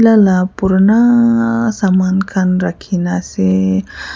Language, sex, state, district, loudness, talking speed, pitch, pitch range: Nagamese, female, Nagaland, Kohima, -13 LUFS, 85 wpm, 190 Hz, 180-225 Hz